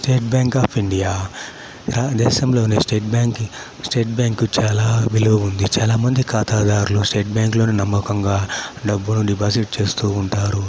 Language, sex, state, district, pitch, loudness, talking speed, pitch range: Telugu, male, Andhra Pradesh, Chittoor, 110 Hz, -18 LUFS, 135 wpm, 100-115 Hz